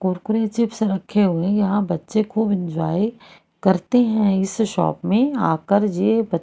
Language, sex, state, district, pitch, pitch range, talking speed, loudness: Hindi, female, Haryana, Rohtak, 205 Hz, 185-220 Hz, 160 wpm, -20 LUFS